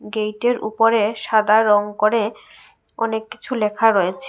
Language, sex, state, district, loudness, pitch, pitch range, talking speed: Bengali, female, Tripura, West Tripura, -19 LUFS, 220 Hz, 210-225 Hz, 110 wpm